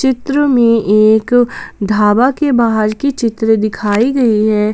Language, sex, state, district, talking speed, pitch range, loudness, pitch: Hindi, female, Jharkhand, Palamu, 140 wpm, 215-250 Hz, -12 LUFS, 230 Hz